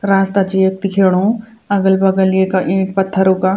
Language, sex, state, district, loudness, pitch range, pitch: Garhwali, female, Uttarakhand, Tehri Garhwal, -14 LUFS, 190-195 Hz, 190 Hz